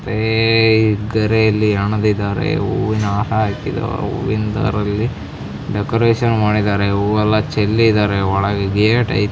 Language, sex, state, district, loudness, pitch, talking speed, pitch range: Kannada, female, Karnataka, Raichur, -16 LUFS, 105 Hz, 90 wpm, 100-110 Hz